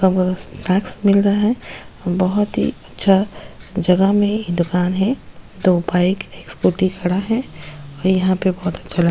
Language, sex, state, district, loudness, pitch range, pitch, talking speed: Hindi, female, Goa, North and South Goa, -18 LUFS, 180-200 Hz, 185 Hz, 145 wpm